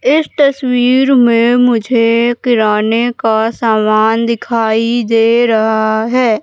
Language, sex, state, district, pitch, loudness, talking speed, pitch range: Hindi, female, Madhya Pradesh, Katni, 230 Hz, -12 LUFS, 105 wpm, 220-245 Hz